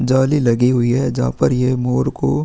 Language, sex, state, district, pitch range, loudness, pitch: Hindi, male, Uttar Pradesh, Jalaun, 120-130 Hz, -16 LUFS, 125 Hz